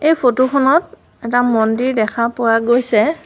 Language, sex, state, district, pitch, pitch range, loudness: Assamese, female, Assam, Sonitpur, 245 Hz, 230-280 Hz, -15 LUFS